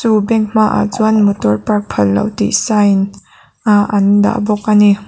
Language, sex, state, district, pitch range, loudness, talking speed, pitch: Mizo, female, Mizoram, Aizawl, 200-215 Hz, -13 LUFS, 175 wpm, 205 Hz